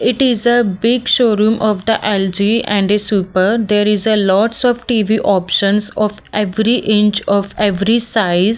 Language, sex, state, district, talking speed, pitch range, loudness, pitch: English, female, Maharashtra, Mumbai Suburban, 170 wpm, 200-230 Hz, -14 LUFS, 210 Hz